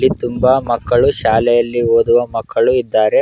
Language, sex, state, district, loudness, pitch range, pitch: Kannada, male, Karnataka, Raichur, -14 LUFS, 115-125 Hz, 120 Hz